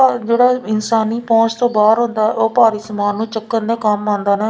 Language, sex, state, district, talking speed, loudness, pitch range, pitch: Punjabi, female, Punjab, Fazilka, 215 wpm, -15 LUFS, 215-230 Hz, 225 Hz